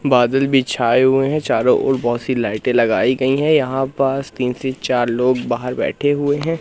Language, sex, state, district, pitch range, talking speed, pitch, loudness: Hindi, male, Madhya Pradesh, Katni, 125-135 Hz, 210 wpm, 130 Hz, -17 LUFS